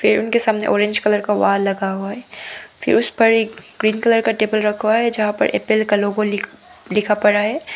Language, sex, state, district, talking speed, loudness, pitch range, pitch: Hindi, female, Arunachal Pradesh, Papum Pare, 210 wpm, -17 LUFS, 210-225 Hz, 215 Hz